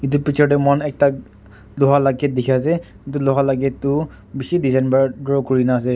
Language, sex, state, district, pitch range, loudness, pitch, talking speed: Nagamese, male, Nagaland, Dimapur, 130-145 Hz, -18 LUFS, 135 Hz, 220 wpm